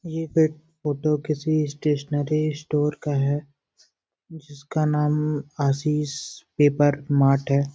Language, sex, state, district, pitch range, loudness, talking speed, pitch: Hindi, male, Chhattisgarh, Sarguja, 145-155 Hz, -23 LUFS, 110 wpm, 150 Hz